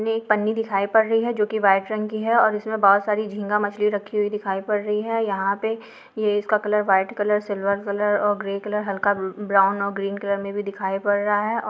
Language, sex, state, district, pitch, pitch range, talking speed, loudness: Hindi, female, Bihar, Jahanabad, 205 Hz, 200-215 Hz, 260 wpm, -22 LUFS